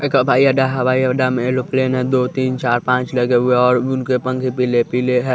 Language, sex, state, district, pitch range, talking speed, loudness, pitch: Hindi, male, Bihar, West Champaran, 125-130 Hz, 225 wpm, -16 LUFS, 130 Hz